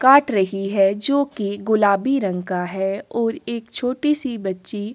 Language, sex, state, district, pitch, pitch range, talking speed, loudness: Hindi, female, Chhattisgarh, Korba, 210 Hz, 195-255 Hz, 170 wpm, -21 LUFS